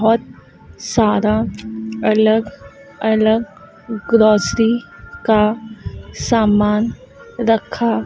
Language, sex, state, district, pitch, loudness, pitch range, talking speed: Hindi, female, Madhya Pradesh, Dhar, 220 Hz, -17 LUFS, 210-230 Hz, 50 wpm